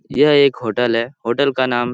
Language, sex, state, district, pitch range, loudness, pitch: Hindi, male, Bihar, Lakhisarai, 120-140 Hz, -16 LUFS, 125 Hz